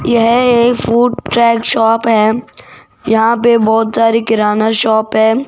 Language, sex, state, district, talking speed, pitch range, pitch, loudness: Hindi, female, Rajasthan, Jaipur, 140 wpm, 220-235 Hz, 230 Hz, -12 LUFS